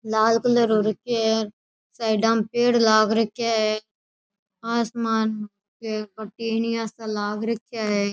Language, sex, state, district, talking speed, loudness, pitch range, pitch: Rajasthani, female, Rajasthan, Churu, 125 wpm, -23 LUFS, 215-230 Hz, 220 Hz